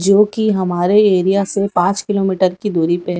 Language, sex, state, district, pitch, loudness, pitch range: Hindi, female, Chhattisgarh, Raipur, 195 Hz, -15 LUFS, 180-205 Hz